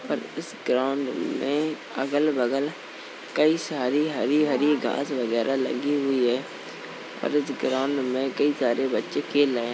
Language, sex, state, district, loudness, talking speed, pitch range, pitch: Hindi, male, Uttar Pradesh, Jalaun, -25 LUFS, 140 wpm, 130-145 Hz, 135 Hz